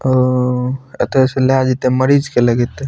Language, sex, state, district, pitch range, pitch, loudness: Maithili, male, Bihar, Madhepura, 125-130 Hz, 130 Hz, -15 LUFS